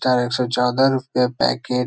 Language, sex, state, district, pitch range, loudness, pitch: Hindi, male, Bihar, Jahanabad, 125-130 Hz, -19 LUFS, 125 Hz